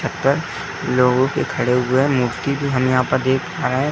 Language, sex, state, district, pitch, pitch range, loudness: Hindi, male, Uttar Pradesh, Etah, 130 Hz, 125-140 Hz, -19 LUFS